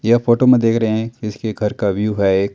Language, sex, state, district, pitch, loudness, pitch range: Hindi, male, Chandigarh, Chandigarh, 110 Hz, -17 LUFS, 105-115 Hz